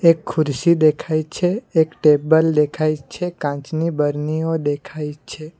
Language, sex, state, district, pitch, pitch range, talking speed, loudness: Gujarati, male, Gujarat, Valsad, 155 Hz, 150-165 Hz, 130 wpm, -19 LUFS